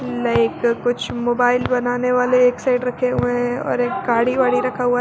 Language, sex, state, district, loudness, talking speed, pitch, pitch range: Hindi, female, Jharkhand, Garhwa, -18 LUFS, 205 wpm, 245 Hz, 245-250 Hz